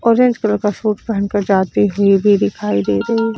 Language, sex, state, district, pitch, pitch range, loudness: Hindi, female, Chandigarh, Chandigarh, 205 Hz, 195-225 Hz, -15 LUFS